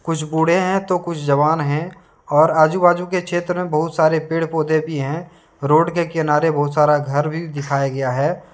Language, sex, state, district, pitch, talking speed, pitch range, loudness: Hindi, male, Jharkhand, Deoghar, 160 Hz, 205 wpm, 150-175 Hz, -18 LUFS